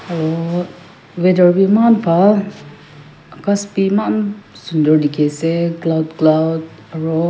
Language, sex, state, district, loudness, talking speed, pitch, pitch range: Nagamese, female, Nagaland, Kohima, -15 LUFS, 115 wpm, 170 Hz, 160-195 Hz